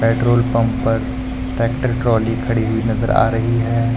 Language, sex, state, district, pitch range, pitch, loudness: Hindi, male, Uttar Pradesh, Lucknow, 115-120 Hz, 115 Hz, -18 LUFS